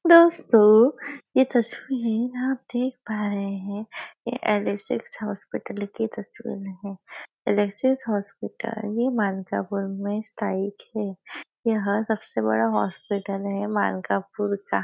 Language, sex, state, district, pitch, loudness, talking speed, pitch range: Hindi, female, Maharashtra, Nagpur, 210 Hz, -25 LUFS, 115 wpm, 200-235 Hz